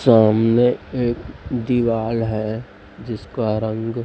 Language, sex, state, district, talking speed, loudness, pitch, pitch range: Hindi, male, Chhattisgarh, Raipur, 90 wpm, -20 LUFS, 115 Hz, 110-120 Hz